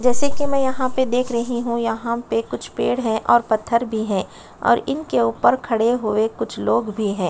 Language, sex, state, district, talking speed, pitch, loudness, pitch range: Hindi, female, Chhattisgarh, Sukma, 215 wpm, 235 Hz, -20 LUFS, 220-250 Hz